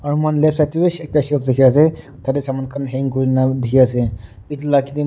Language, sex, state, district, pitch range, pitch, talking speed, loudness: Nagamese, male, Nagaland, Dimapur, 130-150 Hz, 140 Hz, 215 wpm, -17 LUFS